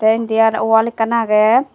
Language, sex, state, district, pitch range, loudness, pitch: Chakma, female, Tripura, Dhalai, 220-230 Hz, -15 LUFS, 225 Hz